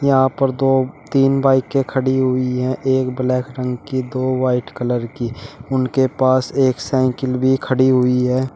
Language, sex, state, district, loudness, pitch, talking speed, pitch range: Hindi, male, Uttar Pradesh, Shamli, -18 LUFS, 130 Hz, 170 wpm, 125-135 Hz